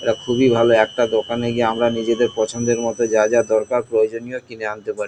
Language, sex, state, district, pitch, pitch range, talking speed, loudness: Bengali, male, West Bengal, Kolkata, 115 Hz, 110-120 Hz, 200 wpm, -18 LUFS